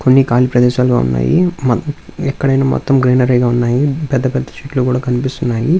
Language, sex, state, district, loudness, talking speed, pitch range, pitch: Telugu, male, Andhra Pradesh, Visakhapatnam, -14 LUFS, 145 wpm, 125-135 Hz, 130 Hz